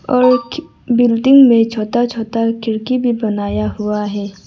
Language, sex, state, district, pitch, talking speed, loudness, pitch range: Hindi, female, Arunachal Pradesh, Lower Dibang Valley, 230 Hz, 135 wpm, -14 LUFS, 210-245 Hz